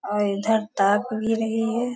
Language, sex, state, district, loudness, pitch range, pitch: Hindi, female, Bihar, Sitamarhi, -23 LUFS, 205-225 Hz, 220 Hz